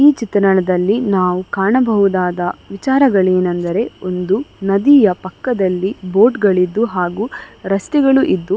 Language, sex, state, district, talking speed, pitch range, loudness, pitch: Kannada, female, Karnataka, Dakshina Kannada, 110 wpm, 185-230 Hz, -15 LUFS, 195 Hz